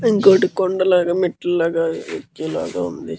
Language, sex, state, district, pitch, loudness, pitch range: Telugu, male, Andhra Pradesh, Guntur, 185 Hz, -18 LUFS, 175-190 Hz